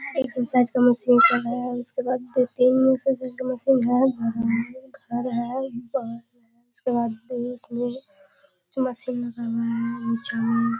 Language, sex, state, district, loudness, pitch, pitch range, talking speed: Hindi, female, Bihar, Kishanganj, -23 LUFS, 245 Hz, 235-260 Hz, 90 wpm